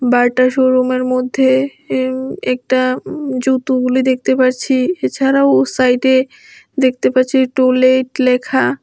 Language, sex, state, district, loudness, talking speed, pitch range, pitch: Bengali, female, Tripura, West Tripura, -14 LUFS, 115 wpm, 255-260 Hz, 255 Hz